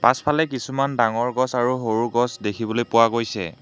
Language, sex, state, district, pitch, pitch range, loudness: Assamese, male, Assam, Hailakandi, 120 Hz, 115-130 Hz, -21 LUFS